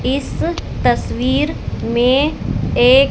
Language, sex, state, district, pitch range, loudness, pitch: Hindi, female, Haryana, Charkhi Dadri, 250-280 Hz, -17 LUFS, 265 Hz